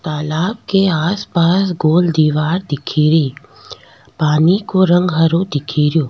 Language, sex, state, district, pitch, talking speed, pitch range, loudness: Rajasthani, female, Rajasthan, Nagaur, 165 Hz, 120 wpm, 155-180 Hz, -15 LUFS